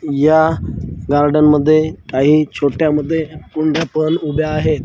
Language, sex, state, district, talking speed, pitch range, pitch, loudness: Marathi, male, Maharashtra, Washim, 125 wpm, 150-155 Hz, 155 Hz, -15 LUFS